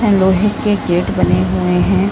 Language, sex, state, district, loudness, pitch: Hindi, female, Bihar, Saharsa, -14 LUFS, 175 Hz